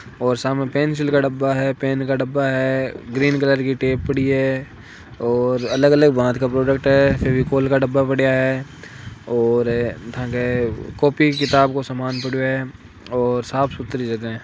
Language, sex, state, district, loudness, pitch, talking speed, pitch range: Hindi, male, Rajasthan, Nagaur, -19 LUFS, 130 Hz, 175 wpm, 125-135 Hz